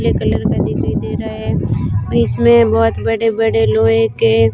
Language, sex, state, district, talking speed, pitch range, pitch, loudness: Hindi, female, Rajasthan, Bikaner, 185 wpm, 110-115 Hz, 115 Hz, -15 LUFS